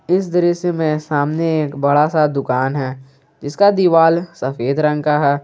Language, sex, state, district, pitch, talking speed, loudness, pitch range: Hindi, male, Jharkhand, Garhwa, 150 Hz, 165 wpm, -16 LUFS, 140-165 Hz